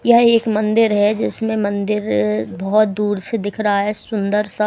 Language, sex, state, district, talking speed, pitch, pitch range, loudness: Hindi, female, Himachal Pradesh, Shimla, 180 wpm, 210 Hz, 205-220 Hz, -17 LUFS